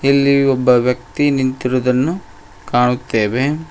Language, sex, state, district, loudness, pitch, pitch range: Kannada, male, Karnataka, Koppal, -16 LUFS, 130 Hz, 125-140 Hz